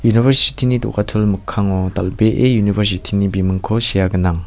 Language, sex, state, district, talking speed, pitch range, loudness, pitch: Garo, male, Meghalaya, West Garo Hills, 105 wpm, 95-115 Hz, -16 LUFS, 100 Hz